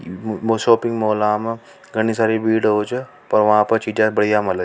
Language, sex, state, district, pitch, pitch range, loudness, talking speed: Rajasthani, male, Rajasthan, Nagaur, 110 Hz, 105-115 Hz, -18 LUFS, 155 wpm